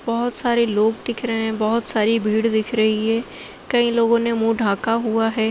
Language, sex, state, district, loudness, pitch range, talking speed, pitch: Hindi, female, Uttar Pradesh, Jyotiba Phule Nagar, -19 LUFS, 220-235 Hz, 205 wpm, 225 Hz